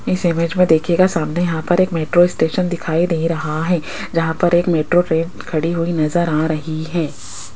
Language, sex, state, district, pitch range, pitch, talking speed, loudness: Hindi, female, Rajasthan, Jaipur, 160-175 Hz, 165 Hz, 200 wpm, -17 LUFS